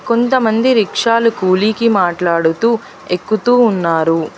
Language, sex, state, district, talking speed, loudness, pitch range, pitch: Telugu, female, Telangana, Hyderabad, 80 wpm, -14 LUFS, 175-230 Hz, 220 Hz